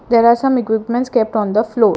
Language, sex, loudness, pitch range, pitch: English, female, -15 LUFS, 220-240 Hz, 230 Hz